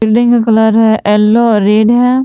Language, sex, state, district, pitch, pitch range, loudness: Hindi, female, Jharkhand, Palamu, 220 Hz, 215-235 Hz, -9 LUFS